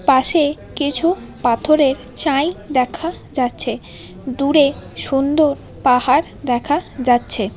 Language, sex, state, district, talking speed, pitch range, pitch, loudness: Bengali, female, West Bengal, Kolkata, 85 wpm, 255-305 Hz, 280 Hz, -17 LUFS